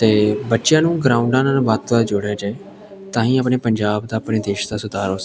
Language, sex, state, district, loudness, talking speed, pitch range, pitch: Punjabi, male, Punjab, Pathankot, -18 LUFS, 230 wpm, 105-130 Hz, 110 Hz